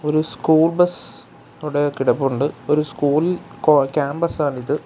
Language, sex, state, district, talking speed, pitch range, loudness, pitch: Malayalam, male, Kerala, Kollam, 125 wpm, 145-160 Hz, -19 LUFS, 150 Hz